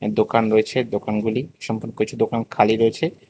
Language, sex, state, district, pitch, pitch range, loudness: Bengali, male, Tripura, West Tripura, 110 Hz, 110-115 Hz, -21 LUFS